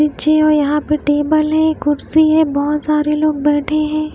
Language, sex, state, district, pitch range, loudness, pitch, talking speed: Hindi, female, Himachal Pradesh, Shimla, 295-310 Hz, -15 LUFS, 300 Hz, 190 wpm